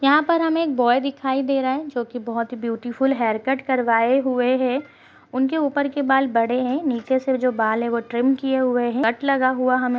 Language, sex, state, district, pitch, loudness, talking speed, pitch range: Hindi, female, Uttar Pradesh, Ghazipur, 260 Hz, -21 LUFS, 235 wpm, 240-270 Hz